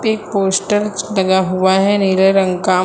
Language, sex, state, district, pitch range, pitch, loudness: Hindi, female, Uttar Pradesh, Lucknow, 190-205 Hz, 195 Hz, -15 LUFS